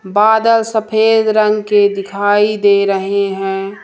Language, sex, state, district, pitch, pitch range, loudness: Hindi, female, Madhya Pradesh, Umaria, 205 Hz, 200-215 Hz, -13 LUFS